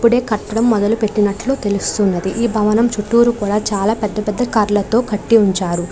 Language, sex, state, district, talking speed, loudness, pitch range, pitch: Telugu, female, Andhra Pradesh, Krishna, 140 wpm, -16 LUFS, 205-230 Hz, 210 Hz